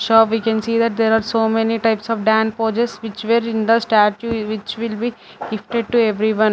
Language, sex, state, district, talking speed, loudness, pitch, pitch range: English, female, Punjab, Fazilka, 210 wpm, -18 LUFS, 225 Hz, 220-230 Hz